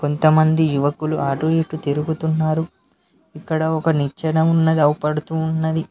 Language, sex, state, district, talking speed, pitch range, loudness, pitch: Telugu, male, Telangana, Mahabubabad, 110 wpm, 150-160 Hz, -19 LUFS, 155 Hz